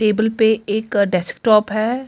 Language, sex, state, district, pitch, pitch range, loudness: Hindi, female, Delhi, New Delhi, 215 Hz, 210-220 Hz, -17 LUFS